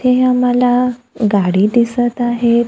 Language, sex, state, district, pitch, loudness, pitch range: Marathi, female, Maharashtra, Gondia, 240 Hz, -14 LUFS, 235-250 Hz